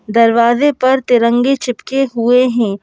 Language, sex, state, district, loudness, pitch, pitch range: Hindi, female, Madhya Pradesh, Bhopal, -13 LUFS, 245 Hz, 230-260 Hz